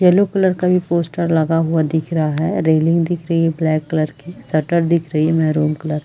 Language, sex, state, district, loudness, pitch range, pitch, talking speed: Hindi, female, Chhattisgarh, Raigarh, -17 LUFS, 155-170 Hz, 165 Hz, 240 wpm